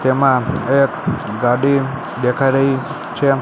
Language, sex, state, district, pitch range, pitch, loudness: Gujarati, male, Gujarat, Gandhinagar, 130-140 Hz, 135 Hz, -17 LUFS